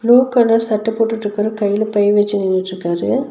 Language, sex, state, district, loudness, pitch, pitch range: Tamil, female, Tamil Nadu, Nilgiris, -16 LUFS, 215 Hz, 205-225 Hz